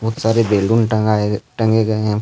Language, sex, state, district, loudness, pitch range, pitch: Hindi, male, Jharkhand, Deoghar, -16 LUFS, 105-115 Hz, 110 Hz